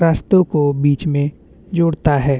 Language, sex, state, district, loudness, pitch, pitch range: Hindi, male, Chhattisgarh, Bastar, -17 LUFS, 150 Hz, 145-170 Hz